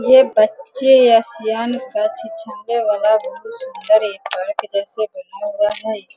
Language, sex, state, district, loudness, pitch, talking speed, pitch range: Hindi, female, Bihar, Sitamarhi, -17 LUFS, 260 Hz, 105 wpm, 220-320 Hz